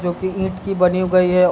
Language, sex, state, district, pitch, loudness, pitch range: Hindi, male, Bihar, Darbhanga, 185 Hz, -18 LUFS, 180-190 Hz